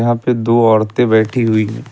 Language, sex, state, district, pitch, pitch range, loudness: Hindi, male, Uttar Pradesh, Lucknow, 115 Hz, 110-120 Hz, -14 LUFS